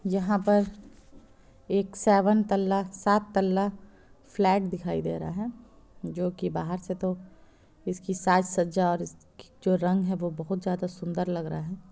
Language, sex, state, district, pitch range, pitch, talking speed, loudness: Hindi, female, Bihar, Muzaffarpur, 180-195 Hz, 185 Hz, 150 wpm, -28 LUFS